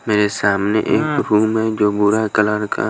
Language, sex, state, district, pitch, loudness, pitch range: Hindi, male, Haryana, Jhajjar, 105 Hz, -17 LUFS, 105-110 Hz